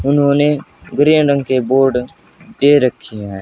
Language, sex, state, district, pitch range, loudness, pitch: Hindi, male, Haryana, Jhajjar, 125-145 Hz, -14 LUFS, 135 Hz